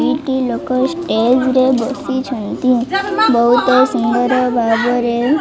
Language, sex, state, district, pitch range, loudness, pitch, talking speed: Odia, female, Odisha, Malkangiri, 240-265 Hz, -15 LUFS, 255 Hz, 110 wpm